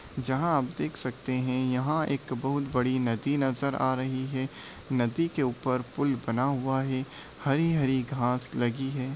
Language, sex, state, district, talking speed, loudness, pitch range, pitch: Hindi, male, Bihar, Bhagalpur, 165 wpm, -29 LUFS, 125-140 Hz, 130 Hz